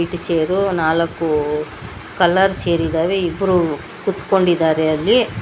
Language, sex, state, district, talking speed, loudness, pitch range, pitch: Kannada, female, Karnataka, Bangalore, 90 wpm, -17 LUFS, 160-185 Hz, 170 Hz